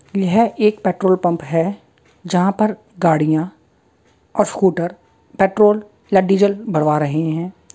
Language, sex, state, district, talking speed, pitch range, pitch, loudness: Hindi, male, West Bengal, Kolkata, 125 wpm, 165-205 Hz, 185 Hz, -17 LUFS